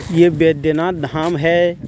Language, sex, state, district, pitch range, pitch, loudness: Hindi, male, Jharkhand, Deoghar, 155-175 Hz, 165 Hz, -16 LUFS